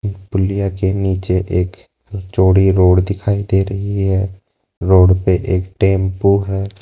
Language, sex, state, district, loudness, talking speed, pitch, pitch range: Hindi, male, Rajasthan, Jaipur, -16 LUFS, 130 wpm, 95 Hz, 95-100 Hz